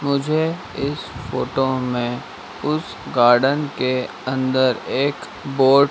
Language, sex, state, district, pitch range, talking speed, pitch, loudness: Hindi, male, Madhya Pradesh, Dhar, 125-140 Hz, 110 wpm, 130 Hz, -20 LUFS